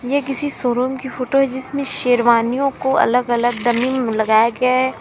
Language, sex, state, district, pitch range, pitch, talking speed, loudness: Hindi, female, Uttar Pradesh, Lalitpur, 240-265 Hz, 255 Hz, 190 wpm, -18 LUFS